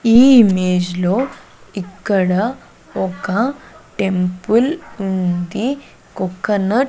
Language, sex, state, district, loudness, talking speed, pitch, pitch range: Telugu, female, Andhra Pradesh, Sri Satya Sai, -17 LUFS, 80 wpm, 195 Hz, 185-235 Hz